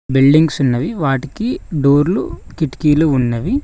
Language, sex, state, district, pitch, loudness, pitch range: Telugu, male, Telangana, Mahabubabad, 150 Hz, -15 LUFS, 135-165 Hz